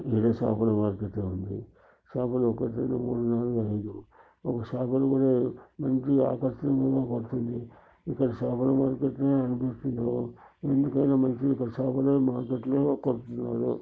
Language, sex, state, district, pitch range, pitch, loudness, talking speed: Telugu, male, Telangana, Nalgonda, 120-135 Hz, 125 Hz, -28 LUFS, 115 wpm